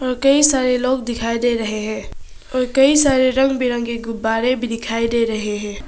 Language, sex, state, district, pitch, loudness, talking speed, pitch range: Hindi, female, Arunachal Pradesh, Papum Pare, 240 Hz, -17 LUFS, 185 wpm, 230-260 Hz